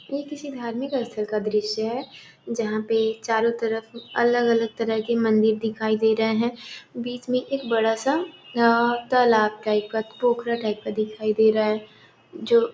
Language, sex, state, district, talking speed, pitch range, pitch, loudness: Hindi, female, Bihar, Gopalganj, 170 wpm, 220-240 Hz, 230 Hz, -23 LUFS